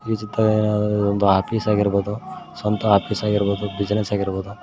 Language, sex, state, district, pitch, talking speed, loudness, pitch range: Kannada, male, Karnataka, Koppal, 105 Hz, 105 wpm, -21 LUFS, 100-105 Hz